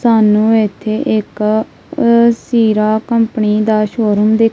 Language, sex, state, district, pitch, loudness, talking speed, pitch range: Punjabi, female, Punjab, Kapurthala, 220 Hz, -13 LUFS, 105 wpm, 215-225 Hz